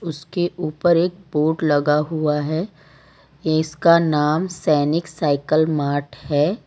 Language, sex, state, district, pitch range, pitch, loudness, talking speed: Hindi, female, Gujarat, Valsad, 150-170 Hz, 155 Hz, -20 LUFS, 115 wpm